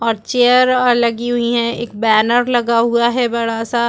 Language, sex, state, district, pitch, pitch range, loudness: Hindi, female, Chhattisgarh, Rajnandgaon, 235 Hz, 230-245 Hz, -15 LUFS